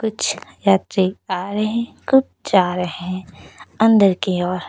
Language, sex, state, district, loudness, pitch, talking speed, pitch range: Hindi, female, Uttar Pradesh, Lucknow, -19 LUFS, 195 Hz, 155 wpm, 185-220 Hz